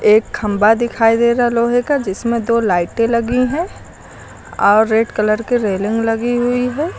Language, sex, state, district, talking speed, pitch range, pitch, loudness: Hindi, female, Uttar Pradesh, Lucknow, 180 wpm, 215-245 Hz, 230 Hz, -15 LUFS